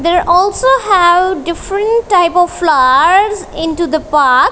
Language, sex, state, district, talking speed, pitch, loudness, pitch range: English, female, Punjab, Kapurthala, 135 wpm, 355 Hz, -11 LUFS, 335-395 Hz